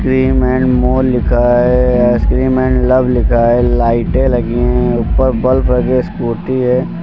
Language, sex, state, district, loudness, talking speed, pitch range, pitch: Hindi, male, Uttar Pradesh, Lucknow, -12 LUFS, 155 wpm, 120-130 Hz, 125 Hz